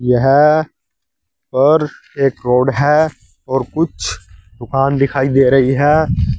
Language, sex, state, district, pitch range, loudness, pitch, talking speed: Hindi, male, Uttar Pradesh, Saharanpur, 125-150 Hz, -14 LUFS, 135 Hz, 115 wpm